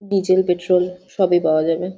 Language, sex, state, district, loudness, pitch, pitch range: Bengali, female, West Bengal, Jhargram, -18 LUFS, 180 Hz, 175-190 Hz